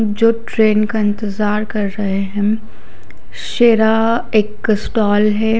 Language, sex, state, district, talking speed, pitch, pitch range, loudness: Hindi, female, Odisha, Khordha, 120 wpm, 210 Hz, 205-220 Hz, -16 LUFS